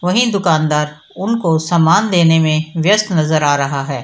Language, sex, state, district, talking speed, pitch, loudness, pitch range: Hindi, female, Bihar, Samastipur, 165 wpm, 160 Hz, -14 LUFS, 155-180 Hz